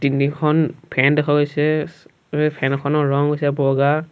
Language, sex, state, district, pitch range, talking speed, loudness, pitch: Assamese, male, Assam, Sonitpur, 140-150 Hz, 130 wpm, -19 LUFS, 145 Hz